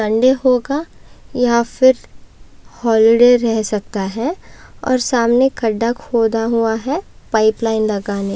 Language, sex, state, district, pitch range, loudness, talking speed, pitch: Hindi, female, Maharashtra, Aurangabad, 220-255 Hz, -16 LUFS, 130 wpm, 235 Hz